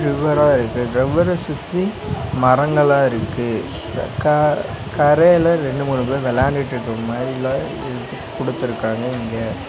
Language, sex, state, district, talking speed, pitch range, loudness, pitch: Tamil, male, Tamil Nadu, Nilgiris, 100 wpm, 125-150 Hz, -18 LUFS, 135 Hz